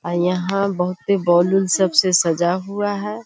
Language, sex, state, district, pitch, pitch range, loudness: Hindi, female, Bihar, Kishanganj, 185 Hz, 175-200 Hz, -18 LUFS